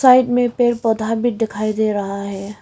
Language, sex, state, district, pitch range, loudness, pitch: Hindi, female, Arunachal Pradesh, Longding, 210-240 Hz, -18 LUFS, 225 Hz